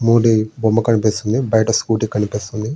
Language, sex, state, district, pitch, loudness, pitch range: Telugu, male, Andhra Pradesh, Srikakulam, 110 Hz, -17 LUFS, 110-115 Hz